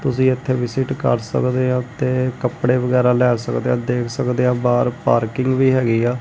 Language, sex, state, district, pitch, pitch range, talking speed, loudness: Punjabi, male, Punjab, Kapurthala, 125 Hz, 120-130 Hz, 195 wpm, -18 LUFS